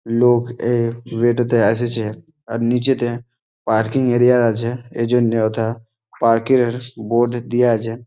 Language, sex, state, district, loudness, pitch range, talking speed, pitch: Bengali, male, West Bengal, Malda, -18 LUFS, 115-120 Hz, 135 wpm, 120 Hz